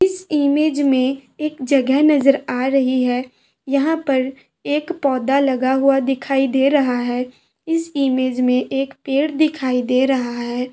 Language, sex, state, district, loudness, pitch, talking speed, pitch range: Hindi, female, Bihar, Madhepura, -18 LUFS, 270 Hz, 155 wpm, 255-290 Hz